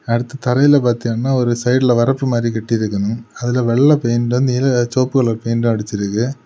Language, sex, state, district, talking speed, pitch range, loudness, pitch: Tamil, male, Tamil Nadu, Kanyakumari, 150 wpm, 115-130 Hz, -16 LUFS, 120 Hz